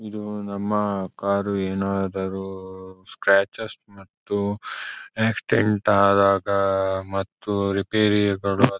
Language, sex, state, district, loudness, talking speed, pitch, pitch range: Kannada, male, Karnataka, Shimoga, -23 LUFS, 70 wpm, 100 Hz, 95-105 Hz